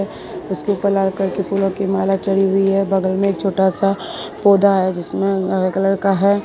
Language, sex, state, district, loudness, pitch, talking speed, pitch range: Hindi, female, Gujarat, Valsad, -17 LUFS, 195 Hz, 215 wpm, 190-195 Hz